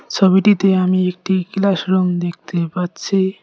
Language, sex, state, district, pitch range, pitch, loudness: Bengali, male, West Bengal, Cooch Behar, 180-195 Hz, 185 Hz, -17 LUFS